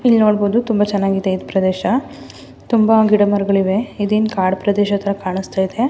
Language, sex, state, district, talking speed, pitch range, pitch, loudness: Kannada, female, Karnataka, Mysore, 155 wpm, 190-215 Hz, 205 Hz, -16 LUFS